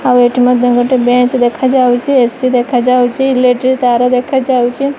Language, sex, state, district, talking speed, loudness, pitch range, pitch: Odia, female, Odisha, Malkangiri, 130 wpm, -11 LUFS, 245-260 Hz, 250 Hz